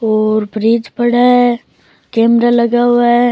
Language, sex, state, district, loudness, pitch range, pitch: Rajasthani, male, Rajasthan, Churu, -12 LUFS, 225-240 Hz, 240 Hz